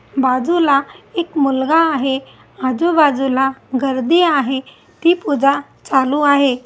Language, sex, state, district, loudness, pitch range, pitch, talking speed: Marathi, female, Maharashtra, Aurangabad, -16 LUFS, 265-325 Hz, 275 Hz, 100 wpm